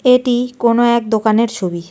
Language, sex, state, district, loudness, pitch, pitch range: Bengali, female, West Bengal, Darjeeling, -15 LUFS, 235 Hz, 220-245 Hz